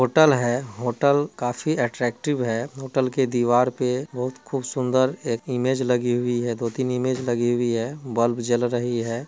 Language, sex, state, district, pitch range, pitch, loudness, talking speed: Hindi, male, Bihar, Muzaffarpur, 120-130 Hz, 125 Hz, -23 LUFS, 190 wpm